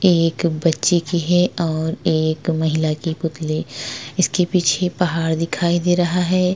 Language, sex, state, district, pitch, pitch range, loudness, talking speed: Hindi, female, Maharashtra, Chandrapur, 165 Hz, 160-180 Hz, -19 LUFS, 145 wpm